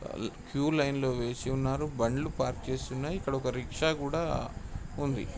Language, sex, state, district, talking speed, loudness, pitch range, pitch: Telugu, male, Telangana, Nalgonda, 155 wpm, -32 LUFS, 130-150 Hz, 135 Hz